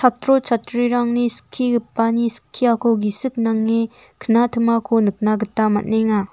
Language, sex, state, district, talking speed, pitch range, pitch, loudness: Garo, female, Meghalaya, North Garo Hills, 95 wpm, 220-240 Hz, 230 Hz, -19 LUFS